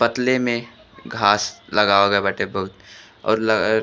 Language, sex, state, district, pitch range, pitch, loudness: Bhojpuri, male, Uttar Pradesh, Gorakhpur, 100-115 Hz, 110 Hz, -19 LUFS